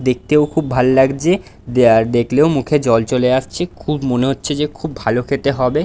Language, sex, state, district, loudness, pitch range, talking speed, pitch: Bengali, male, West Bengal, Dakshin Dinajpur, -16 LUFS, 125-150 Hz, 195 wpm, 135 Hz